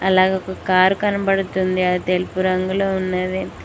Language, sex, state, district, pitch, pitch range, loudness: Telugu, female, Telangana, Mahabubabad, 185 Hz, 185-190 Hz, -19 LUFS